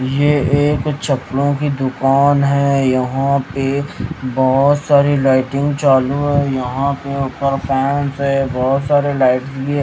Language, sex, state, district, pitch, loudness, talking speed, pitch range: Hindi, male, Haryana, Rohtak, 140 Hz, -16 LUFS, 135 wpm, 135-145 Hz